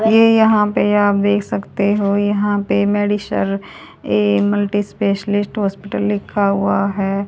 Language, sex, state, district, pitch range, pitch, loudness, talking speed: Hindi, female, Haryana, Rohtak, 200-205 Hz, 205 Hz, -16 LUFS, 125 wpm